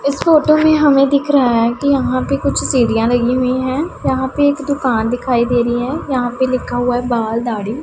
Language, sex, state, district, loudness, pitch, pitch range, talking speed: Hindi, female, Punjab, Pathankot, -15 LUFS, 255 Hz, 240-280 Hz, 235 wpm